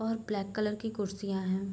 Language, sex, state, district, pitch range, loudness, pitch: Hindi, female, Bihar, Bhagalpur, 195-215 Hz, -34 LUFS, 205 Hz